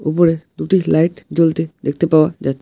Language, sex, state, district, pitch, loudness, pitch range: Bengali, male, West Bengal, Alipurduar, 160 Hz, -16 LUFS, 155-170 Hz